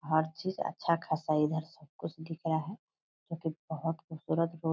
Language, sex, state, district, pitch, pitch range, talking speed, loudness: Hindi, female, Bihar, Purnia, 160 Hz, 155-165 Hz, 215 wpm, -34 LUFS